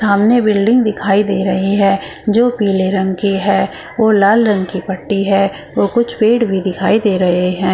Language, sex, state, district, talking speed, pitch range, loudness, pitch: Hindi, female, Uttar Pradesh, Shamli, 195 wpm, 190-215 Hz, -14 LUFS, 200 Hz